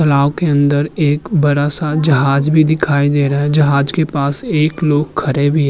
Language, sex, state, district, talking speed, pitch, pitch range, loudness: Hindi, male, Uttar Pradesh, Muzaffarnagar, 200 wpm, 145 Hz, 140-155 Hz, -14 LUFS